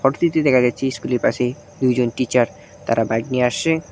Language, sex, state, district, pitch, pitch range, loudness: Bengali, male, West Bengal, Cooch Behar, 125 Hz, 120-135 Hz, -19 LUFS